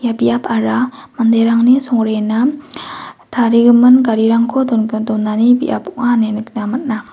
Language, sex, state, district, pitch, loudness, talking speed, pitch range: Garo, female, Meghalaya, West Garo Hills, 235 Hz, -13 LUFS, 100 wpm, 220-250 Hz